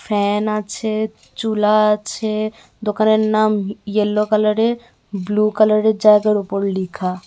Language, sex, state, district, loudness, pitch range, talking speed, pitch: Bengali, female, Tripura, West Tripura, -18 LUFS, 205-215 Hz, 105 wpm, 215 Hz